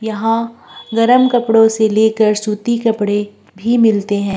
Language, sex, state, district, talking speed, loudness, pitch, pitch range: Hindi, female, Uttar Pradesh, Jyotiba Phule Nagar, 135 wpm, -14 LUFS, 220 Hz, 210-230 Hz